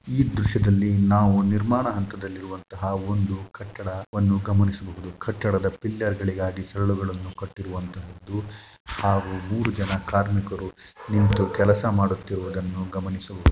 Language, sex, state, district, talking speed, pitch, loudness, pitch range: Kannada, male, Karnataka, Shimoga, 95 wpm, 100 Hz, -24 LUFS, 95-100 Hz